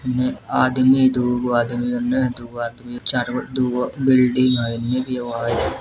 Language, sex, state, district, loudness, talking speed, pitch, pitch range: Hindi, male, Bihar, Muzaffarpur, -19 LUFS, 135 wpm, 125 Hz, 120-130 Hz